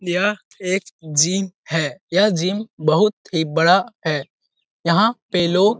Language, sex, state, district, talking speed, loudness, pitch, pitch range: Hindi, male, Bihar, Lakhisarai, 145 wpm, -19 LUFS, 180 Hz, 160-205 Hz